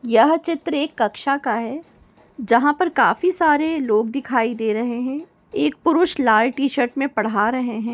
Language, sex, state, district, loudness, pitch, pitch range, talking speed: Hindi, female, Uttar Pradesh, Deoria, -19 LUFS, 260 Hz, 230-300 Hz, 175 wpm